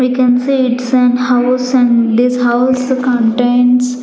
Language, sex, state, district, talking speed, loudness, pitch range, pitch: English, female, Chandigarh, Chandigarh, 150 wpm, -12 LUFS, 245-255 Hz, 250 Hz